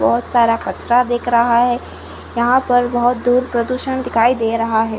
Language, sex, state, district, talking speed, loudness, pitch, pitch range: Hindi, female, Goa, North and South Goa, 180 wpm, -16 LUFS, 240 Hz, 230-245 Hz